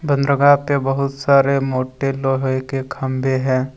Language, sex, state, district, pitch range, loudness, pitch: Hindi, male, Jharkhand, Deoghar, 130-140 Hz, -18 LUFS, 135 Hz